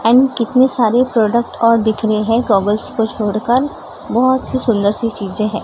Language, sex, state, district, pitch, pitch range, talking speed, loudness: Hindi, female, Maharashtra, Gondia, 230 Hz, 215-245 Hz, 180 wpm, -15 LUFS